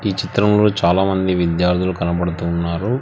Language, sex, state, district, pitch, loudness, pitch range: Telugu, male, Telangana, Hyderabad, 90 Hz, -17 LUFS, 85-100 Hz